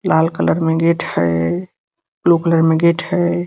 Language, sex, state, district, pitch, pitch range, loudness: Hindi, male, Uttar Pradesh, Gorakhpur, 165 Hz, 160-170 Hz, -16 LUFS